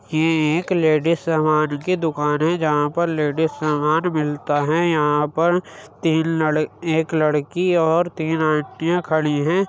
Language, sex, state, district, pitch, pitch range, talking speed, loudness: Hindi, male, Uttar Pradesh, Jyotiba Phule Nagar, 160 Hz, 150-165 Hz, 150 wpm, -20 LUFS